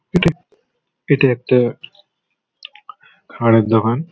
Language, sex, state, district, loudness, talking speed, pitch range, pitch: Bengali, male, West Bengal, Malda, -16 LUFS, 75 wpm, 115-180 Hz, 135 Hz